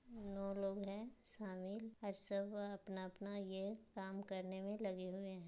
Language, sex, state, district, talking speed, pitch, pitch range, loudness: Hindi, female, Bihar, Muzaffarpur, 165 wpm, 195 Hz, 190-205 Hz, -47 LUFS